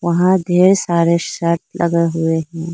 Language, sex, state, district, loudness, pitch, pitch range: Hindi, female, Arunachal Pradesh, Lower Dibang Valley, -16 LUFS, 170 Hz, 170-175 Hz